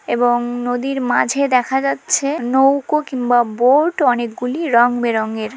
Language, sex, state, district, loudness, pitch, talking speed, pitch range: Bengali, female, West Bengal, Dakshin Dinajpur, -16 LUFS, 250 Hz, 110 wpm, 240-275 Hz